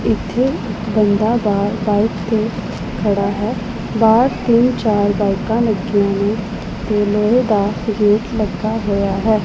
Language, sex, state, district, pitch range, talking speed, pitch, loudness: Punjabi, female, Punjab, Pathankot, 205-225 Hz, 135 wpm, 215 Hz, -17 LUFS